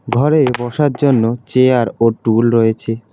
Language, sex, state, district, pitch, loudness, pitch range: Bengali, male, West Bengal, Alipurduar, 120 Hz, -14 LUFS, 115-130 Hz